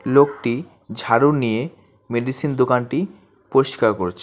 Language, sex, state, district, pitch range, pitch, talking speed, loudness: Bengali, male, West Bengal, Alipurduar, 115-140 Hz, 130 Hz, 100 wpm, -20 LUFS